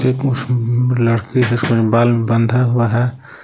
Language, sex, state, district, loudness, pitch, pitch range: Hindi, male, Jharkhand, Palamu, -16 LUFS, 120 Hz, 115-125 Hz